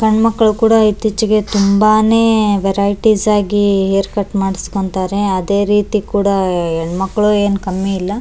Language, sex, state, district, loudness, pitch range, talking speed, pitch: Kannada, male, Karnataka, Bellary, -14 LUFS, 195-215 Hz, 125 wpm, 205 Hz